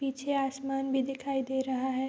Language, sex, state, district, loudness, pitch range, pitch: Hindi, female, Bihar, Vaishali, -32 LUFS, 265-270 Hz, 270 Hz